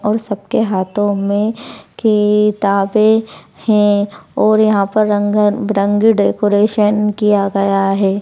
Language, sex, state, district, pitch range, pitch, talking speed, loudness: Hindi, male, Bihar, Madhepura, 200-215 Hz, 210 Hz, 110 wpm, -14 LUFS